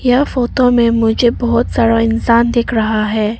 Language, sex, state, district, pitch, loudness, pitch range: Hindi, female, Arunachal Pradesh, Papum Pare, 235 Hz, -13 LUFS, 225-240 Hz